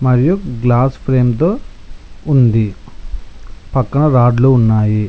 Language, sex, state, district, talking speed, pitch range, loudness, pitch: Telugu, male, Telangana, Mahabubabad, 95 wpm, 105-130 Hz, -13 LUFS, 120 Hz